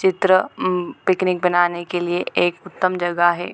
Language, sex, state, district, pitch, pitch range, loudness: Hindi, female, Bihar, Gopalganj, 180 Hz, 175-185 Hz, -19 LUFS